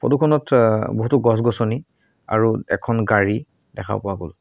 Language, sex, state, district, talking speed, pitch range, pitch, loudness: Assamese, male, Assam, Sonitpur, 150 wpm, 110-120 Hz, 115 Hz, -19 LUFS